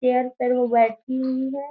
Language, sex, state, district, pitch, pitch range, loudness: Hindi, female, Bihar, Gaya, 250 Hz, 245-260 Hz, -22 LUFS